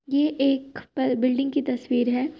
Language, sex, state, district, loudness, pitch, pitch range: Hindi, male, Uttar Pradesh, Jyotiba Phule Nagar, -24 LUFS, 270 Hz, 255-280 Hz